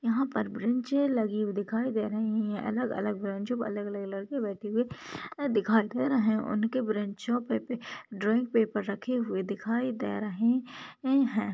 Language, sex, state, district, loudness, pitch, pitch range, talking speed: Hindi, female, Maharashtra, Chandrapur, -30 LUFS, 220 Hz, 210-245 Hz, 170 wpm